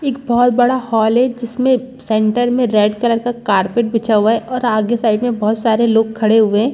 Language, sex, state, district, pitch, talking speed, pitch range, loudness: Hindi, female, Chhattisgarh, Balrampur, 235 Hz, 220 wpm, 220-245 Hz, -15 LUFS